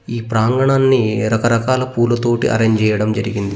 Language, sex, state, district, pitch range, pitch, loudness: Telugu, male, Telangana, Mahabubabad, 110-120 Hz, 115 Hz, -16 LUFS